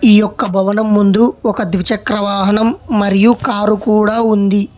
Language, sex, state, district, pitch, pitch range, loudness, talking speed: Telugu, male, Telangana, Hyderabad, 210 Hz, 200-220 Hz, -13 LUFS, 140 wpm